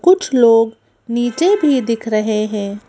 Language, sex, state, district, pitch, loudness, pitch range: Hindi, female, Madhya Pradesh, Bhopal, 230 Hz, -15 LUFS, 215-270 Hz